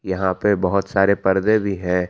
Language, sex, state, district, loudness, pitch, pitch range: Hindi, male, Jharkhand, Palamu, -19 LUFS, 95 Hz, 95-100 Hz